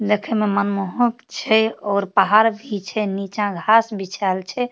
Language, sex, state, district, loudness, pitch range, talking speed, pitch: Maithili, female, Bihar, Supaul, -19 LUFS, 200-225 Hz, 155 wpm, 210 Hz